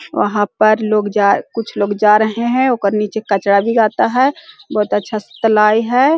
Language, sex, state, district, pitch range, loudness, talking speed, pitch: Hindi, female, Bihar, Jahanabad, 205-230 Hz, -15 LUFS, 175 wpm, 215 Hz